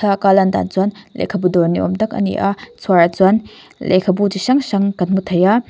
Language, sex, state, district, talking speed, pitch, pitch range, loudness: Mizo, female, Mizoram, Aizawl, 230 wpm, 195 Hz, 190-205 Hz, -16 LUFS